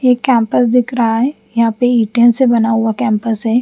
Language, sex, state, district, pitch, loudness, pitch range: Hindi, female, Bihar, Patna, 235 Hz, -13 LUFS, 225-245 Hz